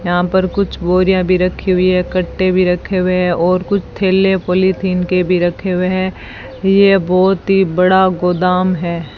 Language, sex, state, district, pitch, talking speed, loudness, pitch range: Hindi, female, Rajasthan, Bikaner, 185 Hz, 185 wpm, -14 LUFS, 180-190 Hz